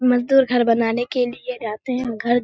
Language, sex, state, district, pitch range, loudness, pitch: Hindi, female, Bihar, Kishanganj, 230-250 Hz, -20 LUFS, 245 Hz